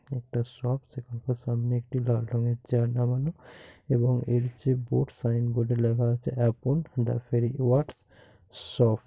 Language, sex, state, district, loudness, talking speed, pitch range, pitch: Bengali, male, West Bengal, Kolkata, -28 LUFS, 140 wpm, 120-125 Hz, 120 Hz